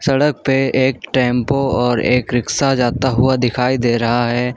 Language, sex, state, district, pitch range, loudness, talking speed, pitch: Hindi, male, Uttar Pradesh, Lucknow, 120-135 Hz, -16 LUFS, 170 wpm, 125 Hz